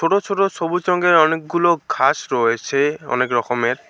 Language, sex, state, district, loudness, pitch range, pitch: Bengali, male, West Bengal, Alipurduar, -18 LUFS, 125-180 Hz, 160 Hz